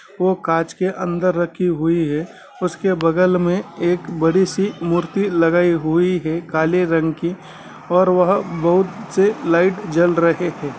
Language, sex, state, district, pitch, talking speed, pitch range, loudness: Hindi, male, Bihar, Gaya, 175 Hz, 150 wpm, 165-185 Hz, -18 LUFS